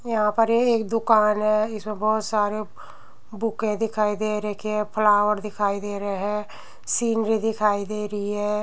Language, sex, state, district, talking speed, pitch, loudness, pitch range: Hindi, female, Uttar Pradesh, Muzaffarnagar, 165 wpm, 215 Hz, -23 LUFS, 210-220 Hz